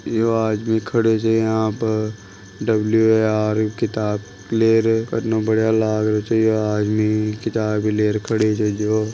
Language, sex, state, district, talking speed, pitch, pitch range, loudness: Marwari, male, Rajasthan, Nagaur, 170 wpm, 110 Hz, 105-110 Hz, -19 LUFS